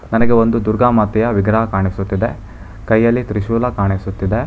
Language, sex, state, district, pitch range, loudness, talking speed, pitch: Kannada, male, Karnataka, Bangalore, 100-115 Hz, -16 LUFS, 120 wpm, 110 Hz